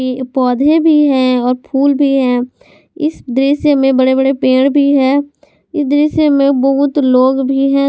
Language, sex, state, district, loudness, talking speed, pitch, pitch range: Hindi, female, Jharkhand, Garhwa, -12 LUFS, 175 wpm, 275 Hz, 260-285 Hz